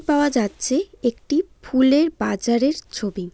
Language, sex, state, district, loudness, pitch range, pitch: Bengali, female, West Bengal, Jalpaiguri, -21 LUFS, 225-300 Hz, 260 Hz